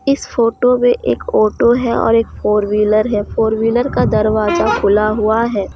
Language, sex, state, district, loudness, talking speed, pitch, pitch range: Hindi, female, Jharkhand, Deoghar, -14 LUFS, 190 wpm, 220 Hz, 215-235 Hz